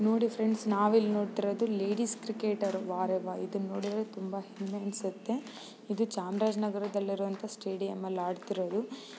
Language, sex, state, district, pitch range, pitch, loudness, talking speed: Kannada, female, Karnataka, Chamarajanagar, 195-220 Hz, 205 Hz, -33 LUFS, 125 wpm